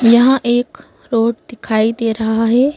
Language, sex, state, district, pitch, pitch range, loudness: Hindi, female, Madhya Pradesh, Bhopal, 235 Hz, 225-245 Hz, -15 LUFS